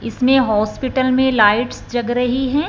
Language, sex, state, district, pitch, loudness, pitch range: Hindi, male, Punjab, Fazilka, 250 Hz, -16 LUFS, 235-260 Hz